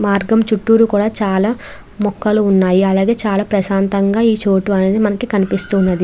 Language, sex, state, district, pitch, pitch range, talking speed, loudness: Telugu, female, Andhra Pradesh, Krishna, 205 Hz, 195-215 Hz, 130 wpm, -14 LUFS